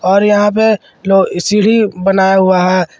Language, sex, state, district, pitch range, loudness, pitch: Hindi, male, Jharkhand, Ranchi, 185-210 Hz, -11 LUFS, 195 Hz